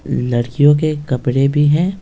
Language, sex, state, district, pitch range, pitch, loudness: Hindi, male, Bihar, Patna, 130-155 Hz, 145 Hz, -15 LUFS